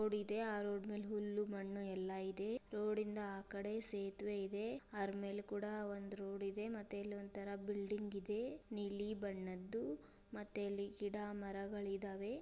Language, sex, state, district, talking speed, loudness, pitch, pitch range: Kannada, female, Karnataka, Dharwad, 140 wpm, -45 LUFS, 205 Hz, 200-210 Hz